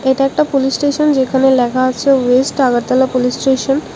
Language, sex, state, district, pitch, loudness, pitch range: Bengali, female, Tripura, West Tripura, 265 Hz, -13 LUFS, 255-275 Hz